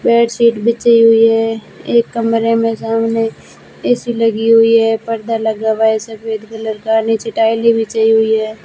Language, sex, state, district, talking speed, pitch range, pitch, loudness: Hindi, female, Rajasthan, Jaisalmer, 175 wpm, 220-230 Hz, 225 Hz, -14 LUFS